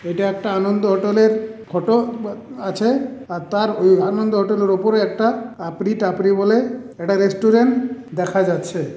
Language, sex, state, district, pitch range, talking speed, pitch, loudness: Bengali, male, West Bengal, Purulia, 190-225 Hz, 140 wpm, 205 Hz, -18 LUFS